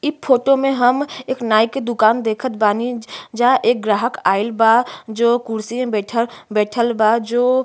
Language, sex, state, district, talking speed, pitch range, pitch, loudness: Bhojpuri, female, Uttar Pradesh, Ghazipur, 180 wpm, 220-250 Hz, 235 Hz, -17 LUFS